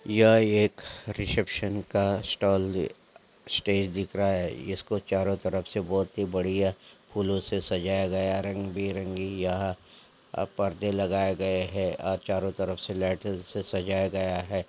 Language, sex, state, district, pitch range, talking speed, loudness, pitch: Angika, male, Bihar, Samastipur, 95-100 Hz, 150 wpm, -28 LUFS, 95 Hz